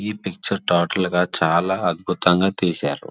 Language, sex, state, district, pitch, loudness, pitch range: Telugu, male, Andhra Pradesh, Srikakulam, 90 Hz, -20 LUFS, 85-95 Hz